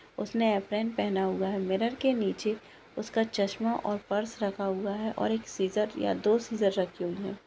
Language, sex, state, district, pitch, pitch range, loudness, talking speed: Hindi, female, Maharashtra, Sindhudurg, 210 Hz, 195-225 Hz, -30 LUFS, 195 wpm